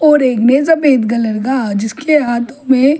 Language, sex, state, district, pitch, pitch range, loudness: Hindi, female, Delhi, New Delhi, 260 Hz, 235-295 Hz, -13 LUFS